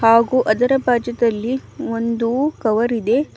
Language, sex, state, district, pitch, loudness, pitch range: Kannada, female, Karnataka, Bidar, 235 Hz, -18 LUFS, 230-255 Hz